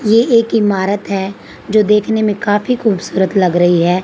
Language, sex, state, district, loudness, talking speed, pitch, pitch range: Hindi, female, Haryana, Charkhi Dadri, -14 LUFS, 180 wpm, 205 Hz, 190-220 Hz